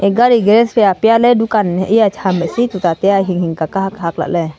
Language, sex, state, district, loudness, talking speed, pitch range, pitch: Wancho, female, Arunachal Pradesh, Longding, -13 LUFS, 220 wpm, 175-225 Hz, 195 Hz